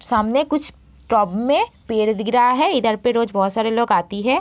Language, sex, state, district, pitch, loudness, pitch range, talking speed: Hindi, female, Bihar, Begusarai, 230 Hz, -19 LUFS, 215-265 Hz, 205 wpm